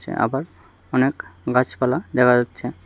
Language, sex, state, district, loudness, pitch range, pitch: Bengali, male, Tripura, West Tripura, -21 LUFS, 120-125 Hz, 125 Hz